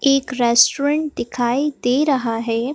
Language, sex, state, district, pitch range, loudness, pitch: Hindi, female, Madhya Pradesh, Bhopal, 240-285 Hz, -18 LUFS, 260 Hz